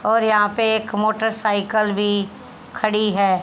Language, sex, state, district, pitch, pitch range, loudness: Hindi, female, Haryana, Rohtak, 215 Hz, 205-220 Hz, -19 LUFS